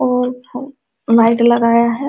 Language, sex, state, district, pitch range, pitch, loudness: Hindi, female, Uttar Pradesh, Jalaun, 235-255 Hz, 245 Hz, -13 LUFS